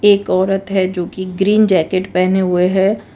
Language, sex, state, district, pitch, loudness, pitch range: Hindi, female, Gujarat, Valsad, 190 Hz, -15 LUFS, 185-195 Hz